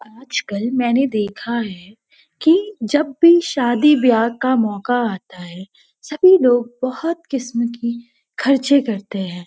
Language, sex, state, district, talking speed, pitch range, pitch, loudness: Hindi, female, Uttarakhand, Uttarkashi, 135 wpm, 220-280 Hz, 240 Hz, -17 LUFS